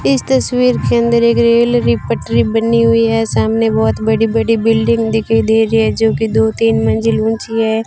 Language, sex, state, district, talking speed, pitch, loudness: Hindi, female, Rajasthan, Bikaner, 190 wpm, 115 Hz, -13 LUFS